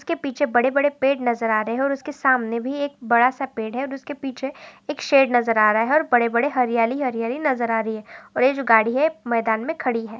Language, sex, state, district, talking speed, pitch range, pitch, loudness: Hindi, female, Maharashtra, Aurangabad, 235 wpm, 230-275 Hz, 255 Hz, -21 LUFS